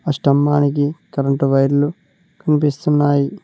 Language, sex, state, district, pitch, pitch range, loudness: Telugu, male, Telangana, Mahabubabad, 145 Hz, 140-150 Hz, -17 LUFS